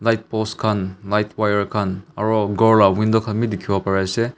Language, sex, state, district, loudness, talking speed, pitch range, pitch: Nagamese, male, Nagaland, Kohima, -19 LUFS, 190 wpm, 100-110 Hz, 105 Hz